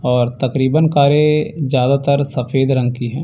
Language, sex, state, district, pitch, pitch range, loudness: Hindi, male, Chandigarh, Chandigarh, 135 Hz, 125-145 Hz, -15 LUFS